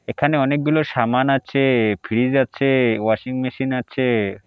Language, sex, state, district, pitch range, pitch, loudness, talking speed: Bengali, male, West Bengal, Alipurduar, 115-135 Hz, 130 Hz, -19 LUFS, 120 wpm